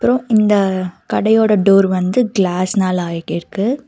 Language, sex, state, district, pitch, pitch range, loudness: Tamil, female, Karnataka, Bangalore, 195 Hz, 185-220 Hz, -15 LUFS